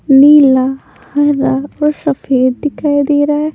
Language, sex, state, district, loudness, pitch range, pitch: Hindi, female, Punjab, Pathankot, -12 LUFS, 270-295 Hz, 290 Hz